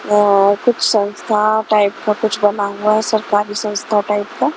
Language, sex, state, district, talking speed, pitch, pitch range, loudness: Hindi, female, Punjab, Kapurthala, 155 wpm, 210 Hz, 205-215 Hz, -16 LUFS